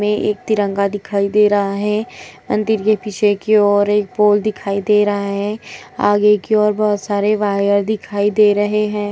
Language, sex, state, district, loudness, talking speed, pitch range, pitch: Hindi, female, Uttar Pradesh, Hamirpur, -16 LUFS, 180 wpm, 205-210 Hz, 210 Hz